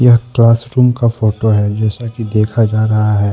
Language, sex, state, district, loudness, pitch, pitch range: Hindi, male, Jharkhand, Deoghar, -13 LUFS, 115 Hz, 105-120 Hz